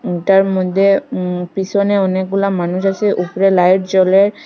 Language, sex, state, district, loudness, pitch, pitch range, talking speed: Bengali, female, Assam, Hailakandi, -14 LUFS, 190 Hz, 185-195 Hz, 135 wpm